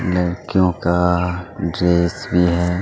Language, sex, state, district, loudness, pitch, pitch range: Hindi, male, Chhattisgarh, Kabirdham, -18 LUFS, 90 Hz, 85-90 Hz